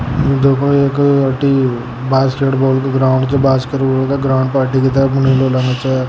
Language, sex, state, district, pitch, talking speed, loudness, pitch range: Hindi, male, Rajasthan, Nagaur, 135 Hz, 130 wpm, -14 LUFS, 130-135 Hz